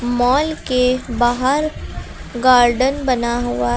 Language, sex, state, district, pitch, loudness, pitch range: Hindi, female, Uttar Pradesh, Lucknow, 250 Hz, -17 LUFS, 240-260 Hz